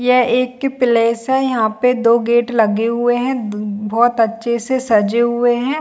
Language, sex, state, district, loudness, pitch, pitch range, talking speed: Hindi, female, Chhattisgarh, Bilaspur, -16 LUFS, 240 Hz, 225-250 Hz, 185 wpm